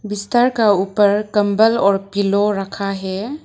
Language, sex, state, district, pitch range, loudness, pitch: Hindi, female, Arunachal Pradesh, Lower Dibang Valley, 195-215 Hz, -17 LUFS, 205 Hz